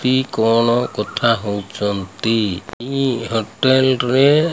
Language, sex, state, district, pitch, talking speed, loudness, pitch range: Odia, male, Odisha, Malkangiri, 115 Hz, 105 wpm, -18 LUFS, 105-130 Hz